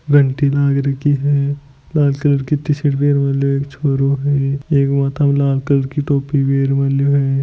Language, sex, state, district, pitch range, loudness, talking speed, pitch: Hindi, male, Rajasthan, Nagaur, 140-145 Hz, -16 LUFS, 185 wpm, 140 Hz